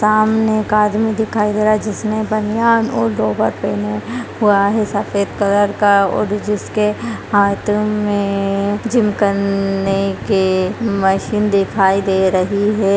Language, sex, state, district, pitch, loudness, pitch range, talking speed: Hindi, female, Bihar, Purnia, 205 Hz, -16 LUFS, 195-215 Hz, 140 wpm